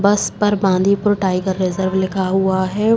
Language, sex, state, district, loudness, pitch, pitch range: Hindi, female, Uttar Pradesh, Jalaun, -17 LUFS, 190 Hz, 190-205 Hz